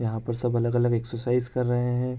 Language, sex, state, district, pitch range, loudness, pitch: Hindi, male, Uttarakhand, Tehri Garhwal, 120-125 Hz, -25 LUFS, 120 Hz